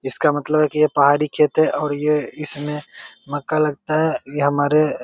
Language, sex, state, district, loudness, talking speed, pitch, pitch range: Hindi, male, Bihar, Begusarai, -19 LUFS, 205 wpm, 150 Hz, 145-155 Hz